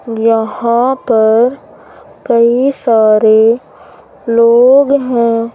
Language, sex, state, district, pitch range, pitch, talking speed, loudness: Hindi, female, Madhya Pradesh, Umaria, 225-255 Hz, 235 Hz, 65 wpm, -10 LUFS